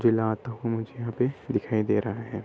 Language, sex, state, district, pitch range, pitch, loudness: Hindi, male, Uttar Pradesh, Gorakhpur, 110-120 Hz, 115 Hz, -28 LUFS